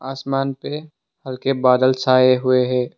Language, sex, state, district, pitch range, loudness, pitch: Hindi, male, Assam, Sonitpur, 130-135 Hz, -18 LUFS, 130 Hz